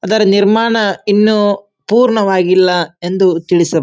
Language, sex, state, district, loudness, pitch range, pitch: Kannada, male, Karnataka, Bijapur, -12 LUFS, 180-215 Hz, 200 Hz